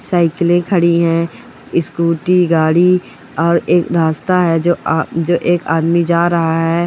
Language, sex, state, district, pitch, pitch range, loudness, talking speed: Hindi, female, Uttar Pradesh, Gorakhpur, 170 Hz, 165-175 Hz, -14 LUFS, 130 wpm